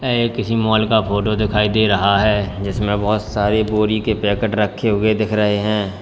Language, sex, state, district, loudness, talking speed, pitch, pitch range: Hindi, male, Uttar Pradesh, Lalitpur, -17 LUFS, 200 wpm, 105 Hz, 105-110 Hz